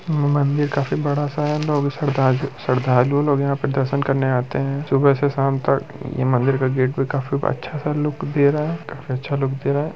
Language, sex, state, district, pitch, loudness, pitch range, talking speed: Hindi, male, Bihar, Muzaffarpur, 140 Hz, -20 LUFS, 135-145 Hz, 235 wpm